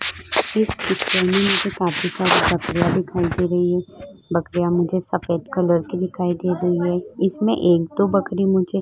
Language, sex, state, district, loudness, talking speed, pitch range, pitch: Hindi, female, Uttar Pradesh, Budaun, -19 LUFS, 150 wpm, 175-190 Hz, 180 Hz